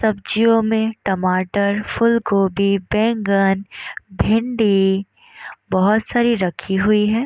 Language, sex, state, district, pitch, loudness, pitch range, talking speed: Hindi, female, Bihar, Gopalganj, 205 Hz, -18 LUFS, 195-220 Hz, 90 wpm